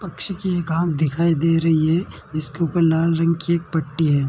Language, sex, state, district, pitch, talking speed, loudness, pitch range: Hindi, male, Uttar Pradesh, Jalaun, 165 Hz, 225 wpm, -20 LUFS, 160-170 Hz